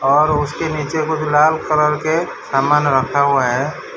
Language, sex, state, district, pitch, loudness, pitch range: Hindi, male, Gujarat, Valsad, 150 Hz, -16 LUFS, 140-155 Hz